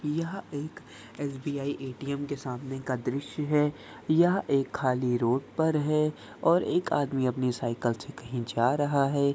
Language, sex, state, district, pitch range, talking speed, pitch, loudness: Hindi, male, Bihar, Saharsa, 125-150 Hz, 160 wpm, 140 Hz, -29 LUFS